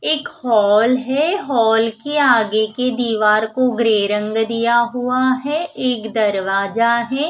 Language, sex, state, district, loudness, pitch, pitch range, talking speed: Hindi, female, Punjab, Fazilka, -17 LUFS, 235 Hz, 220-255 Hz, 140 wpm